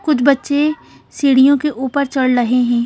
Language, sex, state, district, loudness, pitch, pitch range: Hindi, female, Madhya Pradesh, Bhopal, -15 LUFS, 280 Hz, 255-290 Hz